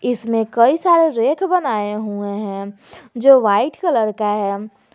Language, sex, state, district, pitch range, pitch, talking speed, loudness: Hindi, female, Jharkhand, Garhwa, 205-310 Hz, 225 Hz, 145 wpm, -17 LUFS